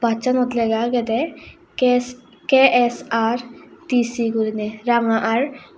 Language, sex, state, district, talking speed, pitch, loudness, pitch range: Chakma, female, Tripura, West Tripura, 85 wpm, 240 Hz, -19 LUFS, 225-255 Hz